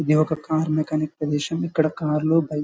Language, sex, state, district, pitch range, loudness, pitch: Telugu, male, Karnataka, Bellary, 150-160 Hz, -23 LUFS, 155 Hz